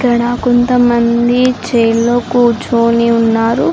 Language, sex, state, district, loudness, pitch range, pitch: Telugu, female, Andhra Pradesh, Srikakulam, -12 LUFS, 235-245 Hz, 240 Hz